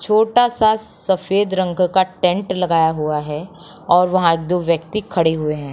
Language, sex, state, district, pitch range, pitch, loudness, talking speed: Hindi, female, Uttar Pradesh, Muzaffarnagar, 165-195 Hz, 180 Hz, -17 LUFS, 165 wpm